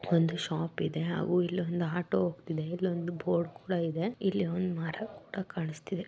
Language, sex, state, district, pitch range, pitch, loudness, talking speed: Kannada, female, Karnataka, Mysore, 165-185 Hz, 175 Hz, -32 LUFS, 160 wpm